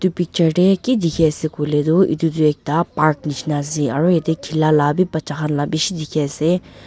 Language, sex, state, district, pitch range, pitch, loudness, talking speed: Nagamese, female, Nagaland, Dimapur, 150-170 Hz, 155 Hz, -18 LUFS, 210 wpm